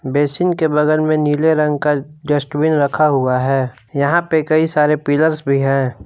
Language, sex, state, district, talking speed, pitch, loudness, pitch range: Hindi, male, Jharkhand, Palamu, 180 wpm, 150 Hz, -16 LUFS, 140-155 Hz